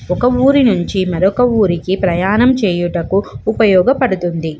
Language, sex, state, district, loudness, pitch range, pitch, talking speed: Telugu, female, Andhra Pradesh, Visakhapatnam, -14 LUFS, 175-240 Hz, 190 Hz, 105 wpm